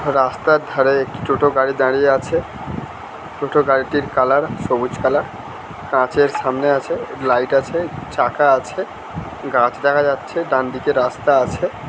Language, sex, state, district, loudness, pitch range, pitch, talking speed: Bengali, male, West Bengal, Kolkata, -18 LUFS, 130-145 Hz, 135 Hz, 145 wpm